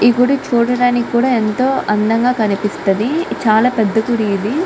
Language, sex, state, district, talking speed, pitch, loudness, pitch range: Telugu, female, Telangana, Nalgonda, 155 wpm, 235 Hz, -15 LUFS, 215-250 Hz